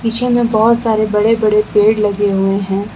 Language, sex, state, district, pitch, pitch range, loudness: Hindi, female, Jharkhand, Deoghar, 215 Hz, 205-225 Hz, -13 LUFS